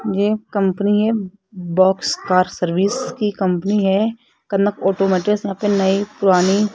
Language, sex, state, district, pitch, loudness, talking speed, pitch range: Hindi, female, Rajasthan, Jaipur, 200 Hz, -18 LUFS, 140 wpm, 190-210 Hz